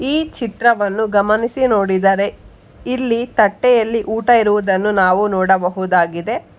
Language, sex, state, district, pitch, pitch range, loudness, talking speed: Kannada, female, Karnataka, Bangalore, 215 Hz, 195-235 Hz, -16 LUFS, 100 wpm